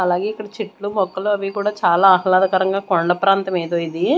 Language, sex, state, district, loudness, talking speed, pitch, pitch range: Telugu, female, Andhra Pradesh, Manyam, -18 LUFS, 170 wpm, 190 Hz, 180-205 Hz